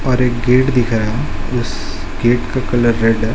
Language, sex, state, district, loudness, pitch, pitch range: Hindi, male, Uttar Pradesh, Ghazipur, -16 LUFS, 120 Hz, 110-125 Hz